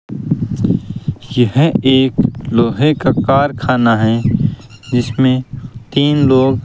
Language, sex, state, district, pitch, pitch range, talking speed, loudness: Hindi, male, Rajasthan, Bikaner, 130 Hz, 120-140 Hz, 90 wpm, -14 LUFS